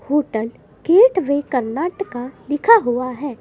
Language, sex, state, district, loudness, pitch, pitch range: Hindi, female, Madhya Pradesh, Dhar, -18 LUFS, 285 Hz, 250-345 Hz